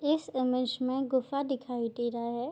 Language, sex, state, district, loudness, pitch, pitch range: Hindi, female, Bihar, Darbhanga, -31 LUFS, 255 Hz, 240-270 Hz